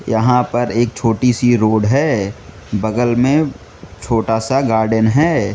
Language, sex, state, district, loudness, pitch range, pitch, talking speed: Hindi, male, Mizoram, Aizawl, -15 LUFS, 110-125 Hz, 115 Hz, 140 wpm